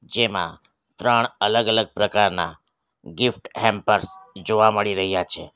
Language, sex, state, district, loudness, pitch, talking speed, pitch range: Gujarati, male, Gujarat, Valsad, -21 LUFS, 105 Hz, 120 wpm, 95-115 Hz